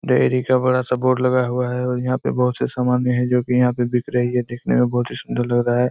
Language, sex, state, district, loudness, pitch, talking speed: Hindi, male, Chhattisgarh, Raigarh, -19 LUFS, 125 Hz, 295 wpm